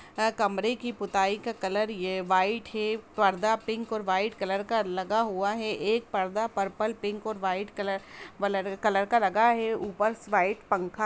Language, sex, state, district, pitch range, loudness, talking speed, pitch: Hindi, female, Bihar, East Champaran, 195-220 Hz, -28 LUFS, 180 wpm, 210 Hz